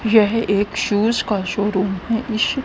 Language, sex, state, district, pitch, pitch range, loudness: Hindi, female, Haryana, Rohtak, 215 Hz, 205-225 Hz, -19 LUFS